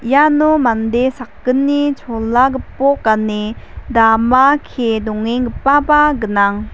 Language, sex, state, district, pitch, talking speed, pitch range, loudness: Garo, female, Meghalaya, West Garo Hills, 250 Hz, 90 wpm, 225-280 Hz, -14 LUFS